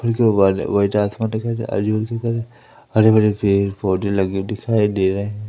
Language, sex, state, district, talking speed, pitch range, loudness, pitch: Hindi, male, Madhya Pradesh, Umaria, 130 wpm, 100-110 Hz, -19 LUFS, 105 Hz